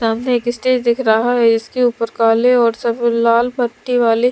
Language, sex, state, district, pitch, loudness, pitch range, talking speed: Hindi, female, Bihar, Katihar, 235 Hz, -15 LUFS, 230-245 Hz, 195 wpm